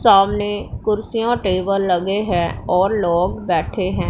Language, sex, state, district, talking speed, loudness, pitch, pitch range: Hindi, female, Punjab, Pathankot, 130 wpm, -19 LUFS, 195 Hz, 180-210 Hz